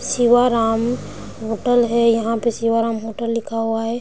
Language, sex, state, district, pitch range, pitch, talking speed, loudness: Hindi, female, Bihar, Sitamarhi, 225-235 Hz, 230 Hz, 150 wpm, -19 LUFS